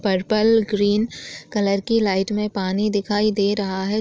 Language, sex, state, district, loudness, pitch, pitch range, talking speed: Chhattisgarhi, female, Chhattisgarh, Jashpur, -20 LUFS, 205 Hz, 200-215 Hz, 165 wpm